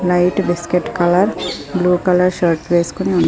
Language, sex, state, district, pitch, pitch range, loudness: Telugu, female, Andhra Pradesh, Srikakulam, 180 Hz, 175-185 Hz, -16 LUFS